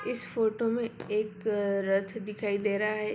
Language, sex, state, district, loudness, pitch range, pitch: Hindi, female, Bihar, Sitamarhi, -30 LUFS, 205-225 Hz, 215 Hz